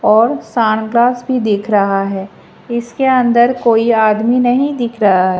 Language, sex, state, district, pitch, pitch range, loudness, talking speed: Hindi, female, Delhi, New Delhi, 230 Hz, 210-245 Hz, -13 LUFS, 145 wpm